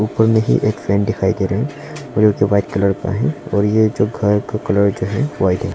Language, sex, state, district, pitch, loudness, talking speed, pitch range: Hindi, male, Arunachal Pradesh, Longding, 105 Hz, -17 LUFS, 250 wpm, 100-110 Hz